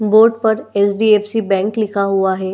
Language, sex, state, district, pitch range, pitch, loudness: Hindi, female, Uttar Pradesh, Etah, 195-220 Hz, 210 Hz, -15 LUFS